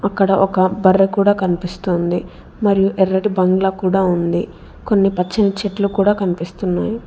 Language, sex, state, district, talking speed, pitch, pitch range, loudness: Telugu, female, Telangana, Hyderabad, 125 wpm, 195 Hz, 185-200 Hz, -17 LUFS